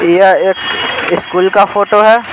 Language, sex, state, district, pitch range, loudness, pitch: Hindi, male, Bihar, Patna, 190-210 Hz, -10 LUFS, 200 Hz